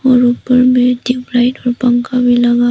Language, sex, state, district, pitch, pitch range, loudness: Hindi, female, Arunachal Pradesh, Papum Pare, 245 Hz, 245-250 Hz, -12 LUFS